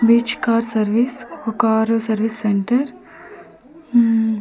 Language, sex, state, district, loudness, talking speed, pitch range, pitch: Telugu, female, Andhra Pradesh, Manyam, -18 LUFS, 110 wpm, 220-240 Hz, 230 Hz